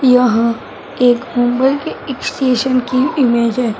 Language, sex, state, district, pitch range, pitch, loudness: Hindi, male, Maharashtra, Mumbai Suburban, 235-260 Hz, 250 Hz, -15 LUFS